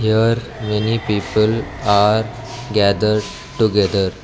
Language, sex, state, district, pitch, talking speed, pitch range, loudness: English, male, Karnataka, Bangalore, 110 Hz, 85 wpm, 105-115 Hz, -17 LUFS